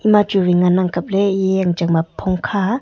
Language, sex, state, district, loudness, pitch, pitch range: Wancho, female, Arunachal Pradesh, Longding, -17 LUFS, 190 Hz, 180-200 Hz